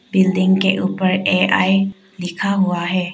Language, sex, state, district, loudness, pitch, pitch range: Hindi, female, Arunachal Pradesh, Papum Pare, -17 LUFS, 190 Hz, 185-195 Hz